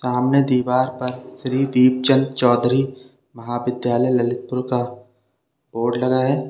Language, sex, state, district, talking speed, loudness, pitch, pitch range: Hindi, male, Uttar Pradesh, Lalitpur, 110 wpm, -19 LUFS, 125 Hz, 125-130 Hz